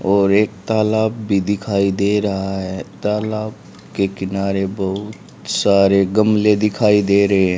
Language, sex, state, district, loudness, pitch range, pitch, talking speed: Hindi, male, Haryana, Rohtak, -17 LUFS, 95-105 Hz, 100 Hz, 135 wpm